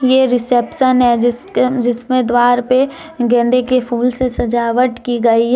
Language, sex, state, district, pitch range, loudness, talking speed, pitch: Hindi, female, Jharkhand, Deoghar, 240-255 Hz, -14 LUFS, 160 wpm, 245 Hz